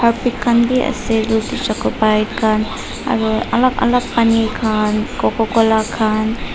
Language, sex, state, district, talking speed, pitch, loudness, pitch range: Nagamese, female, Nagaland, Dimapur, 120 wpm, 225 Hz, -16 LUFS, 220-245 Hz